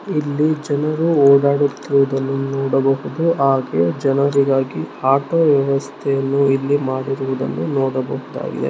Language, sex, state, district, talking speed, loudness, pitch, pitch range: Kannada, male, Karnataka, Mysore, 75 wpm, -18 LUFS, 135 Hz, 135-145 Hz